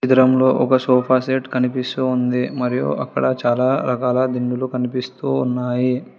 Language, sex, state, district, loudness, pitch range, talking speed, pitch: Telugu, female, Telangana, Hyderabad, -19 LUFS, 125-130 Hz, 125 wpm, 125 Hz